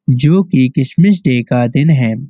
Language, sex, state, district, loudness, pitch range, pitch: Hindi, male, Uttar Pradesh, Muzaffarnagar, -12 LUFS, 125-160 Hz, 140 Hz